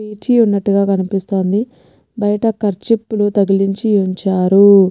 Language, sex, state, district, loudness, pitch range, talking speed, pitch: Telugu, female, Telangana, Nalgonda, -14 LUFS, 195-210 Hz, 85 wpm, 200 Hz